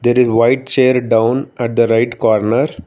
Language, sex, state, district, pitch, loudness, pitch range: English, male, Karnataka, Bangalore, 120 Hz, -14 LUFS, 115-130 Hz